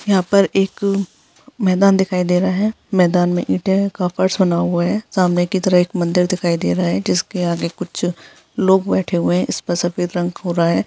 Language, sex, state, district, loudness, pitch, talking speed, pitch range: Hindi, female, Bihar, Jahanabad, -17 LUFS, 180 Hz, 210 wpm, 175-190 Hz